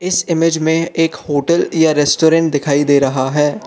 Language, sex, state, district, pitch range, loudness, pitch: Hindi, male, Arunachal Pradesh, Lower Dibang Valley, 145-165 Hz, -14 LUFS, 160 Hz